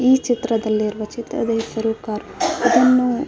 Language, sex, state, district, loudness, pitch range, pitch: Kannada, female, Karnataka, Raichur, -19 LUFS, 220-250 Hz, 235 Hz